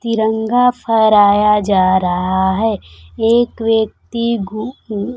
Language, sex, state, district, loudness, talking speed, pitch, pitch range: Hindi, female, Bihar, Kaimur, -14 LUFS, 105 wpm, 220 Hz, 200-230 Hz